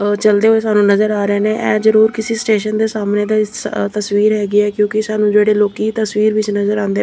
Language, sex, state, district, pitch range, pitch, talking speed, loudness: Punjabi, female, Chandigarh, Chandigarh, 205-215 Hz, 210 Hz, 230 wpm, -14 LUFS